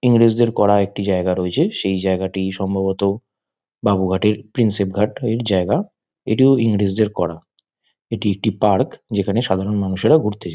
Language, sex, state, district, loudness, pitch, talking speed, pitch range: Bengali, male, West Bengal, Kolkata, -18 LUFS, 100 Hz, 140 wpm, 95-115 Hz